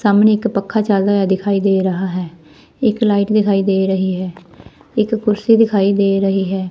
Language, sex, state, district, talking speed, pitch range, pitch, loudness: Punjabi, female, Punjab, Fazilka, 190 wpm, 190-215 Hz, 200 Hz, -16 LUFS